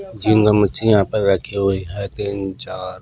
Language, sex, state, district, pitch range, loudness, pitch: Hindi, male, Maharashtra, Washim, 95-105 Hz, -18 LUFS, 100 Hz